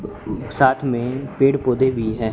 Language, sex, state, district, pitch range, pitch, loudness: Hindi, male, Haryana, Charkhi Dadri, 115-135 Hz, 125 Hz, -20 LUFS